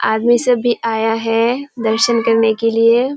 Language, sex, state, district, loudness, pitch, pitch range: Hindi, female, Bihar, Kishanganj, -15 LUFS, 230 Hz, 225-240 Hz